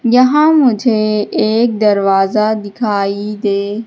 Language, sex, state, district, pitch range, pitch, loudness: Hindi, female, Madhya Pradesh, Katni, 205-235 Hz, 215 Hz, -13 LUFS